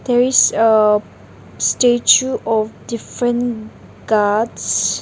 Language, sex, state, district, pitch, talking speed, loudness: English, female, Nagaland, Dimapur, 220 Hz, 85 wpm, -15 LUFS